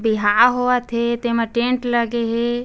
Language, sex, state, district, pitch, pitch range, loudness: Chhattisgarhi, female, Chhattisgarh, Bastar, 235 Hz, 235-245 Hz, -18 LUFS